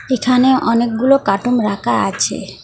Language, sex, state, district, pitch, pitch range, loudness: Bengali, female, West Bengal, Alipurduar, 245 Hz, 230-255 Hz, -15 LUFS